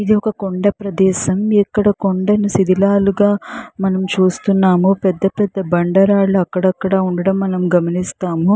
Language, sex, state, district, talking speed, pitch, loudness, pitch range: Telugu, female, Andhra Pradesh, Chittoor, 120 wpm, 195 Hz, -15 LUFS, 185-200 Hz